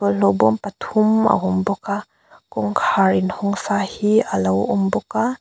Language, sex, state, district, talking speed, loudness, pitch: Mizo, female, Mizoram, Aizawl, 175 wpm, -19 LUFS, 180 Hz